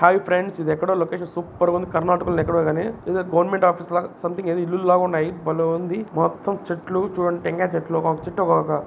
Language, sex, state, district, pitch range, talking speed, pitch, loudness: Telugu, male, Karnataka, Dharwad, 165-180 Hz, 205 wpm, 175 Hz, -22 LUFS